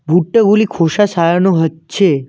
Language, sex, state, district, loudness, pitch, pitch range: Bengali, male, West Bengal, Cooch Behar, -13 LUFS, 175 Hz, 160-200 Hz